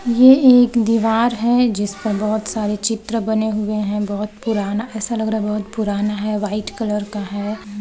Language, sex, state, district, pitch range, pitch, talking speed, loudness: Hindi, female, Chhattisgarh, Balrampur, 210-225 Hz, 215 Hz, 190 wpm, -18 LUFS